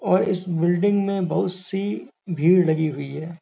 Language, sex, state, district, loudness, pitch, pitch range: Hindi, male, Uttar Pradesh, Gorakhpur, -21 LUFS, 180 Hz, 165-195 Hz